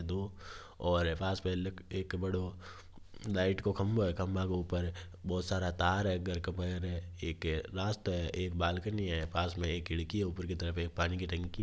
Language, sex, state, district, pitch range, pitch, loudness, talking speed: Hindi, male, Rajasthan, Nagaur, 85-95 Hz, 90 Hz, -36 LUFS, 165 wpm